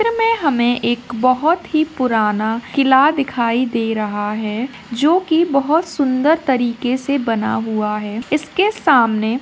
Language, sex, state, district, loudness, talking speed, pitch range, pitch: Hindi, female, Rajasthan, Churu, -17 LUFS, 140 wpm, 230-300 Hz, 255 Hz